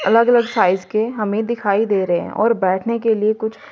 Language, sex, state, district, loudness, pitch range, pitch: Hindi, female, Haryana, Rohtak, -18 LUFS, 200-230 Hz, 215 Hz